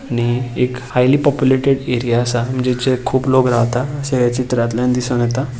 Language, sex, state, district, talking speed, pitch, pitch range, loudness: Konkani, male, Goa, North and South Goa, 160 wpm, 125 Hz, 120-130 Hz, -16 LUFS